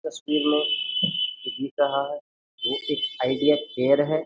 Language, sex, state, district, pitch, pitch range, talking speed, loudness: Hindi, male, Uttar Pradesh, Jyotiba Phule Nagar, 150 Hz, 140-155 Hz, 155 wpm, -24 LUFS